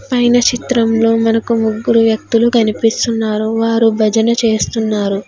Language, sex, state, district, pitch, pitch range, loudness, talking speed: Telugu, female, Telangana, Hyderabad, 225 Hz, 220-230 Hz, -13 LUFS, 100 wpm